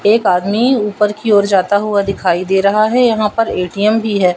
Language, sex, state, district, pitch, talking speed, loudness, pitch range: Hindi, female, Madhya Pradesh, Katni, 210 Hz, 220 wpm, -13 LUFS, 195-220 Hz